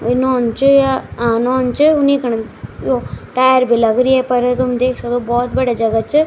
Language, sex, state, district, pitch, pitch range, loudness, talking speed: Garhwali, male, Uttarakhand, Tehri Garhwal, 250 Hz, 240-260 Hz, -15 LUFS, 190 wpm